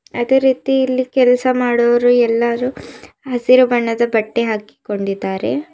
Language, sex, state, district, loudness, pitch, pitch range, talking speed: Kannada, female, Karnataka, Bidar, -16 LUFS, 245 Hz, 235-255 Hz, 105 wpm